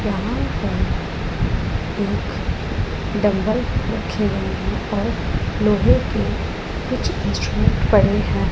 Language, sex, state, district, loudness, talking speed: Hindi, female, Punjab, Pathankot, -21 LUFS, 100 wpm